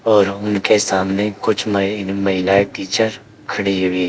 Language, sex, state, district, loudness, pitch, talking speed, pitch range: Hindi, male, Uttar Pradesh, Saharanpur, -17 LUFS, 100 Hz, 145 wpm, 95-105 Hz